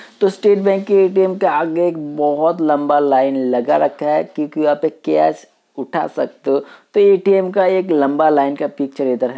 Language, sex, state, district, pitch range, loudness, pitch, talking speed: Hindi, male, Uttar Pradesh, Hamirpur, 140-190 Hz, -16 LUFS, 150 Hz, 200 wpm